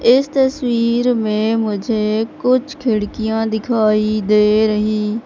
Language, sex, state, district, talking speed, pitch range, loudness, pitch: Hindi, female, Madhya Pradesh, Katni, 105 wpm, 215-240 Hz, -16 LUFS, 220 Hz